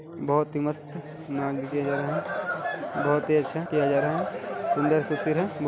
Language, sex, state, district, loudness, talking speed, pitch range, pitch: Hindi, male, Chhattisgarh, Balrampur, -27 LUFS, 200 wpm, 145-155 Hz, 150 Hz